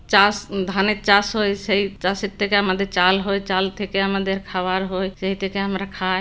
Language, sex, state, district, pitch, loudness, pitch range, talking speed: Bengali, male, West Bengal, Purulia, 195 Hz, -20 LUFS, 190-200 Hz, 185 wpm